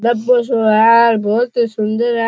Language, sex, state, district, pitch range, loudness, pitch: Rajasthani, male, Rajasthan, Churu, 220-240 Hz, -13 LUFS, 230 Hz